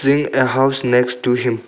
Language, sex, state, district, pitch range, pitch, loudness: English, male, Arunachal Pradesh, Longding, 125-135 Hz, 125 Hz, -16 LUFS